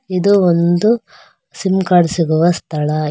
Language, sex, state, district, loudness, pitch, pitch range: Kannada, female, Karnataka, Bangalore, -15 LUFS, 175 Hz, 165-190 Hz